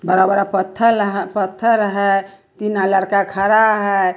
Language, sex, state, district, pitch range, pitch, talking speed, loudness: Hindi, female, Bihar, West Champaran, 195-210 Hz, 200 Hz, 130 wpm, -16 LUFS